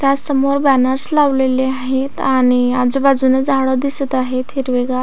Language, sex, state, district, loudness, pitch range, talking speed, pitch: Marathi, female, Maharashtra, Aurangabad, -15 LUFS, 255-275 Hz, 120 wpm, 265 Hz